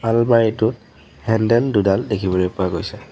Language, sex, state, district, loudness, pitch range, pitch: Assamese, male, Assam, Sonitpur, -18 LUFS, 95-115 Hz, 105 Hz